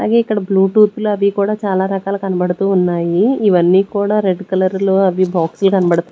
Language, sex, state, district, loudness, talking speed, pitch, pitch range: Telugu, female, Andhra Pradesh, Sri Satya Sai, -15 LUFS, 175 wpm, 195 Hz, 185-205 Hz